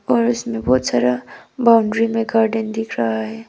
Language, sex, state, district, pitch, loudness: Hindi, female, Arunachal Pradesh, Papum Pare, 220 Hz, -18 LUFS